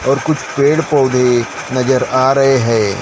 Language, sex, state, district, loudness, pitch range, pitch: Hindi, male, Maharashtra, Gondia, -13 LUFS, 125-140 Hz, 130 Hz